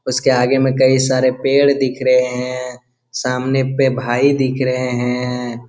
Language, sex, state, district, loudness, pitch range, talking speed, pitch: Hindi, male, Jharkhand, Jamtara, -16 LUFS, 125-130 Hz, 160 wpm, 130 Hz